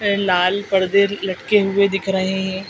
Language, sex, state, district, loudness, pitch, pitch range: Hindi, female, Bihar, Araria, -18 LUFS, 195 Hz, 190-200 Hz